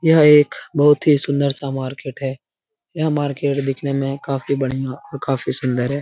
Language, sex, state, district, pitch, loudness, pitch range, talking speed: Hindi, male, Bihar, Lakhisarai, 140 Hz, -19 LUFS, 135-145 Hz, 180 wpm